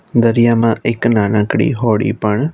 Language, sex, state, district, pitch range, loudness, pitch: Gujarati, male, Gujarat, Navsari, 105-120 Hz, -14 LUFS, 115 Hz